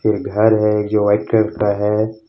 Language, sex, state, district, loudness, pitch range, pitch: Hindi, male, Jharkhand, Ranchi, -16 LUFS, 105-110 Hz, 105 Hz